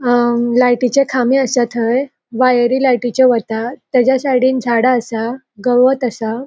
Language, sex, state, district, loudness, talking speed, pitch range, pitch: Konkani, female, Goa, North and South Goa, -14 LUFS, 130 wpm, 240-260 Hz, 250 Hz